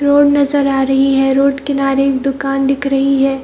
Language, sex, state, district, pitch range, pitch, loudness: Hindi, female, Bihar, Purnia, 270-280 Hz, 275 Hz, -13 LUFS